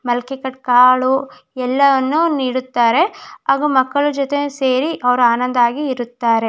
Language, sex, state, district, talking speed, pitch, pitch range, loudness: Kannada, female, Karnataka, Shimoga, 110 wpm, 260 Hz, 250-285 Hz, -16 LUFS